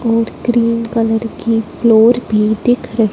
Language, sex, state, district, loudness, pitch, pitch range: Hindi, female, Punjab, Fazilka, -14 LUFS, 230 Hz, 225-235 Hz